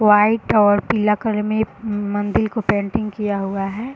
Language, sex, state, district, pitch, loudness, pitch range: Hindi, female, Bihar, Sitamarhi, 210 Hz, -19 LUFS, 205-220 Hz